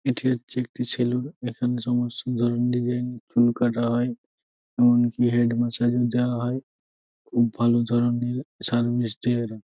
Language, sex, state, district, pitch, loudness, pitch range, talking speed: Bengali, male, West Bengal, Jhargram, 120 Hz, -24 LUFS, 120-125 Hz, 150 wpm